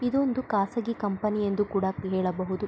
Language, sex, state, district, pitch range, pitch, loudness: Kannada, female, Karnataka, Mysore, 190-230 Hz, 205 Hz, -28 LUFS